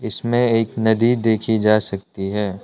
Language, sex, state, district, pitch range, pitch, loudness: Hindi, male, Arunachal Pradesh, Lower Dibang Valley, 105-115 Hz, 110 Hz, -18 LUFS